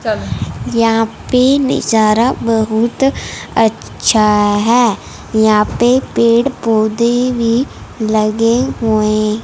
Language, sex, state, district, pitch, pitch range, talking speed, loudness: Hindi, female, Punjab, Fazilka, 225 Hz, 215-240 Hz, 85 wpm, -13 LUFS